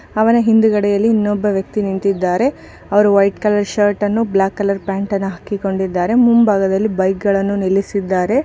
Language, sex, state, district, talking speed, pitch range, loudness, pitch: Kannada, female, Karnataka, Bijapur, 120 wpm, 195-215 Hz, -15 LUFS, 200 Hz